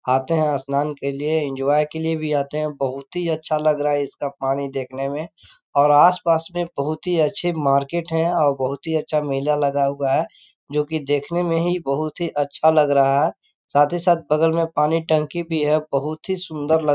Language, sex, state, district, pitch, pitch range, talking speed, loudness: Hindi, male, Chhattisgarh, Korba, 150 Hz, 140-160 Hz, 210 wpm, -21 LUFS